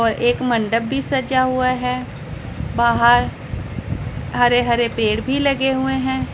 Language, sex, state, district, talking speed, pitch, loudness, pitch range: Hindi, female, Punjab, Pathankot, 140 wpm, 240 Hz, -19 LUFS, 220-260 Hz